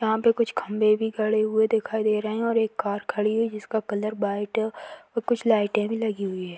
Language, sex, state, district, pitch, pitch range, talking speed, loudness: Hindi, female, Uttar Pradesh, Hamirpur, 220 Hz, 210-225 Hz, 255 wpm, -25 LUFS